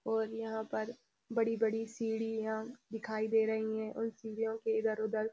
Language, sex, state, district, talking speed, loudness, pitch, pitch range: Hindi, female, Uttarakhand, Uttarkashi, 170 wpm, -36 LUFS, 220 Hz, 220-225 Hz